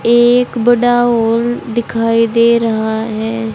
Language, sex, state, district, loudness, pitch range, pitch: Hindi, female, Haryana, Charkhi Dadri, -13 LUFS, 225-240 Hz, 230 Hz